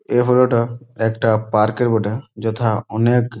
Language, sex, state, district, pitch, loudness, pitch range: Bengali, male, West Bengal, Malda, 115 Hz, -18 LUFS, 110-120 Hz